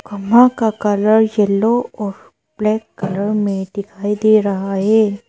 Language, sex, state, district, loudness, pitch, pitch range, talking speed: Hindi, female, Arunachal Pradesh, Papum Pare, -16 LUFS, 210 Hz, 200-220 Hz, 135 wpm